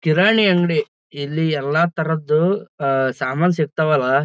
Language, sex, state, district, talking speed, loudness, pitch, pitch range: Kannada, male, Karnataka, Gulbarga, 100 wpm, -18 LUFS, 155 Hz, 145-175 Hz